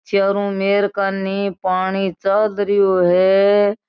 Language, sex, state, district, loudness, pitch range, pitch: Marwari, female, Rajasthan, Nagaur, -17 LUFS, 190-200 Hz, 195 Hz